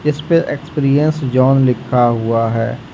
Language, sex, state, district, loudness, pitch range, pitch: Hindi, male, Jharkhand, Ranchi, -15 LUFS, 120-145 Hz, 130 Hz